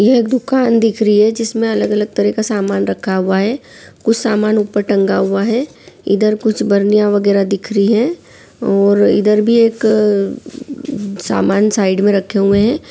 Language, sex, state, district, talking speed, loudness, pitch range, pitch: Hindi, female, Bihar, Saran, 170 wpm, -14 LUFS, 200-225 Hz, 210 Hz